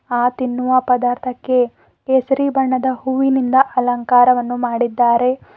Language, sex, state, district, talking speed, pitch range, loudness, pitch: Kannada, female, Karnataka, Bidar, 85 wpm, 245-260 Hz, -16 LUFS, 250 Hz